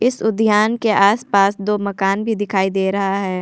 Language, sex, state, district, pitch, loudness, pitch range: Hindi, female, Jharkhand, Ranchi, 200 Hz, -17 LUFS, 195-220 Hz